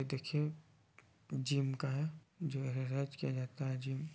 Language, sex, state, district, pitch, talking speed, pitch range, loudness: Hindi, male, Bihar, Muzaffarpur, 135 Hz, 175 wpm, 130-150 Hz, -39 LUFS